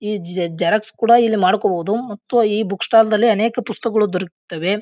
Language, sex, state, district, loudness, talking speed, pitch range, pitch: Kannada, male, Karnataka, Bijapur, -17 LUFS, 175 wpm, 190-225 Hz, 215 Hz